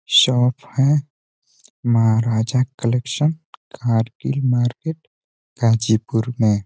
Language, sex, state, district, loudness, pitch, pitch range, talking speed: Hindi, male, Uttar Pradesh, Ghazipur, -19 LUFS, 125 Hz, 115-140 Hz, 70 wpm